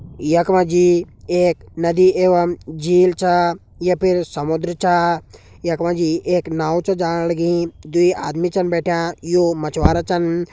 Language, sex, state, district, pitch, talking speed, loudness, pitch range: Garhwali, male, Uttarakhand, Uttarkashi, 175 Hz, 140 wpm, -18 LUFS, 170-180 Hz